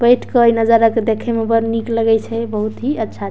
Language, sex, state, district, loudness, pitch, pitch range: Maithili, female, Bihar, Darbhanga, -16 LUFS, 230 Hz, 225-230 Hz